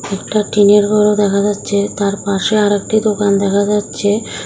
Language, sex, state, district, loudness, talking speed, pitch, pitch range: Bengali, female, Tripura, South Tripura, -14 LUFS, 150 wpm, 205 Hz, 200-210 Hz